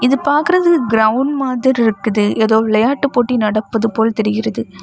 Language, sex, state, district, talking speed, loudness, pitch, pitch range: Tamil, female, Tamil Nadu, Kanyakumari, 125 wpm, -15 LUFS, 230 Hz, 220-265 Hz